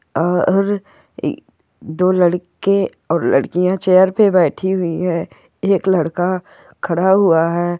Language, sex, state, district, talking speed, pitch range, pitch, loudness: Hindi, female, Goa, North and South Goa, 125 wpm, 175-190 Hz, 185 Hz, -16 LUFS